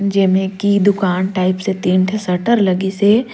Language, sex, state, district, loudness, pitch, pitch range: Surgujia, female, Chhattisgarh, Sarguja, -15 LUFS, 195 Hz, 185-205 Hz